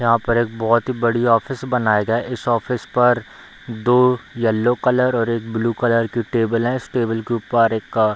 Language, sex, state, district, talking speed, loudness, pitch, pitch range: Hindi, male, Bihar, Darbhanga, 220 wpm, -19 LUFS, 115 Hz, 115-125 Hz